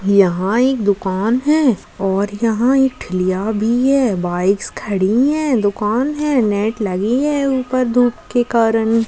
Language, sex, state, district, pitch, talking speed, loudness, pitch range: Hindi, female, Rajasthan, Nagaur, 225 Hz, 145 wpm, -16 LUFS, 200-255 Hz